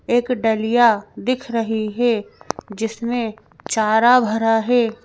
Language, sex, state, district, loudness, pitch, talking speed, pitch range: Hindi, female, Madhya Pradesh, Bhopal, -19 LUFS, 225 Hz, 105 wpm, 220-240 Hz